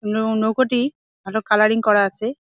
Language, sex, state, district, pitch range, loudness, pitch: Bengali, female, West Bengal, Jalpaiguri, 210-235 Hz, -19 LUFS, 220 Hz